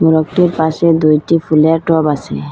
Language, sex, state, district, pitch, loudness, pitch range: Bengali, female, Assam, Hailakandi, 160 Hz, -13 LUFS, 155-165 Hz